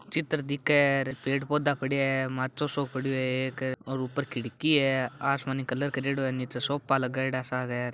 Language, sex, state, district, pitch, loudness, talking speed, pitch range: Marwari, male, Rajasthan, Churu, 135 Hz, -29 LUFS, 180 wpm, 130-140 Hz